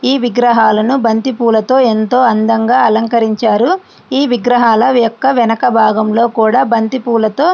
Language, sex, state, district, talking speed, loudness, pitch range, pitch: Telugu, female, Andhra Pradesh, Srikakulam, 110 wpm, -11 LUFS, 225-255 Hz, 235 Hz